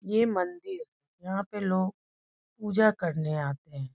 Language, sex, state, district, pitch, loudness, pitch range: Hindi, female, West Bengal, North 24 Parganas, 190 Hz, -29 LUFS, 155-215 Hz